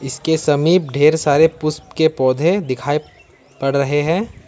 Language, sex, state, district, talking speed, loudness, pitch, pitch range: Hindi, male, Jharkhand, Ranchi, 150 wpm, -17 LUFS, 150 Hz, 140-160 Hz